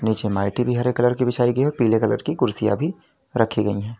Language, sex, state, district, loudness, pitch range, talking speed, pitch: Hindi, male, Uttar Pradesh, Lalitpur, -21 LUFS, 110-125 Hz, 255 wpm, 115 Hz